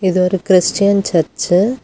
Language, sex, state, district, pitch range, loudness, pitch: Tamil, female, Tamil Nadu, Kanyakumari, 180-200 Hz, -14 LUFS, 185 Hz